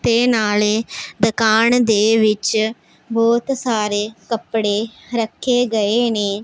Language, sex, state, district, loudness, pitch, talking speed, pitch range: Punjabi, female, Punjab, Pathankot, -17 LUFS, 220 Hz, 100 wpm, 210-235 Hz